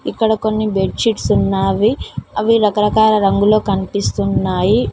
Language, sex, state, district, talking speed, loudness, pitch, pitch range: Telugu, female, Telangana, Mahabubabad, 110 wpm, -15 LUFS, 210 Hz, 195-220 Hz